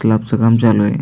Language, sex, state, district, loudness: Marathi, male, Maharashtra, Aurangabad, -14 LUFS